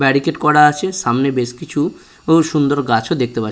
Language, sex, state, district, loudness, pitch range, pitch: Bengali, male, West Bengal, Purulia, -16 LUFS, 130-165 Hz, 145 Hz